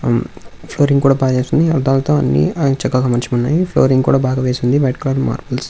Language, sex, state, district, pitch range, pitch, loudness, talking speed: Telugu, male, Andhra Pradesh, Visakhapatnam, 125-145 Hz, 135 Hz, -15 LUFS, 180 wpm